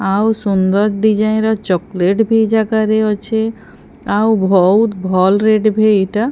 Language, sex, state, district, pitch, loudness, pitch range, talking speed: Odia, female, Odisha, Sambalpur, 215 Hz, -14 LUFS, 195-220 Hz, 140 wpm